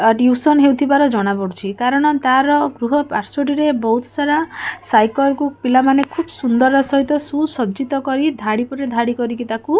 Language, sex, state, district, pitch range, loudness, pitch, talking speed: Odia, female, Odisha, Khordha, 240-290 Hz, -16 LUFS, 275 Hz, 160 wpm